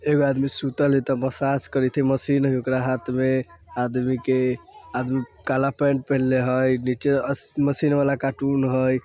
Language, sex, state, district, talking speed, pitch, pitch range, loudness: Bajjika, male, Bihar, Vaishali, 185 wpm, 130 Hz, 130-140 Hz, -23 LUFS